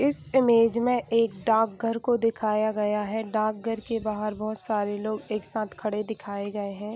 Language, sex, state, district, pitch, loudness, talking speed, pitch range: Hindi, female, Bihar, Saharsa, 215 Hz, -26 LUFS, 190 wpm, 210-230 Hz